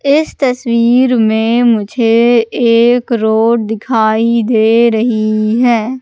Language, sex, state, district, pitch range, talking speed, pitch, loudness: Hindi, female, Madhya Pradesh, Katni, 225-245 Hz, 100 wpm, 235 Hz, -11 LUFS